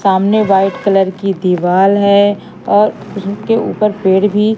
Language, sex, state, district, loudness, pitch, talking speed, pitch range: Hindi, female, Madhya Pradesh, Katni, -12 LUFS, 200 Hz, 145 wpm, 195-210 Hz